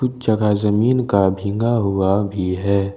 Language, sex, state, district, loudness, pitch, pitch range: Hindi, male, Jharkhand, Ranchi, -18 LUFS, 100 Hz, 100-110 Hz